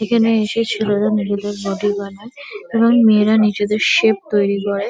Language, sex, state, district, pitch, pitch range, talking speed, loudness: Bengali, female, West Bengal, Kolkata, 210 Hz, 205-225 Hz, 145 wpm, -16 LUFS